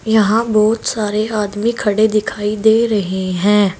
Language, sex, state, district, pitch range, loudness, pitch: Hindi, female, Uttar Pradesh, Saharanpur, 205-220 Hz, -15 LUFS, 215 Hz